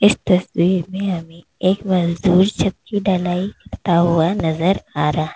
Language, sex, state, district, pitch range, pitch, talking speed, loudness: Hindi, female, Uttar Pradesh, Lalitpur, 170-190 Hz, 180 Hz, 165 wpm, -18 LUFS